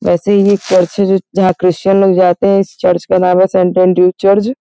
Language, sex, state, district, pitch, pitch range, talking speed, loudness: Hindi, female, Uttar Pradesh, Gorakhpur, 185 Hz, 180-195 Hz, 260 wpm, -11 LUFS